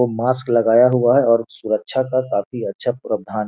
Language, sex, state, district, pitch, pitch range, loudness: Hindi, male, Bihar, Gopalganj, 120 Hz, 110-125 Hz, -18 LUFS